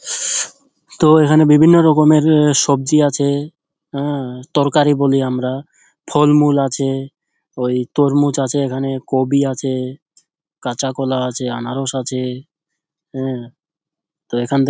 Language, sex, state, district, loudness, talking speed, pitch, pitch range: Bengali, male, West Bengal, Dakshin Dinajpur, -16 LUFS, 110 wpm, 140 Hz, 130-150 Hz